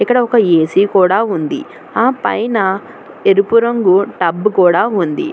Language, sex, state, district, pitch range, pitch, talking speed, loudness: Telugu, female, Telangana, Hyderabad, 185-235 Hz, 200 Hz, 135 wpm, -13 LUFS